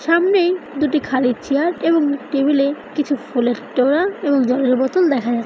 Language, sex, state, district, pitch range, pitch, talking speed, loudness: Bengali, female, West Bengal, North 24 Parganas, 260-320 Hz, 285 Hz, 155 wpm, -18 LUFS